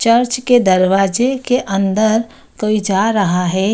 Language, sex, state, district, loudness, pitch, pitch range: Hindi, female, Bihar, Samastipur, -15 LUFS, 215 Hz, 195-240 Hz